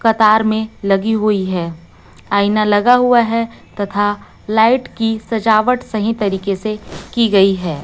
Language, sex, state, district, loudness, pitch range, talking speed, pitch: Hindi, female, Chhattisgarh, Raipur, -15 LUFS, 200-225 Hz, 145 wpm, 215 Hz